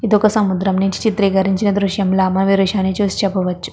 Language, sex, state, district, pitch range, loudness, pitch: Telugu, female, Andhra Pradesh, Krishna, 190-205 Hz, -16 LUFS, 195 Hz